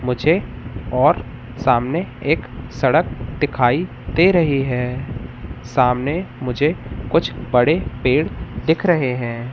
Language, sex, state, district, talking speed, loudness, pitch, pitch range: Hindi, male, Madhya Pradesh, Katni, 105 wpm, -19 LUFS, 125 Hz, 120-155 Hz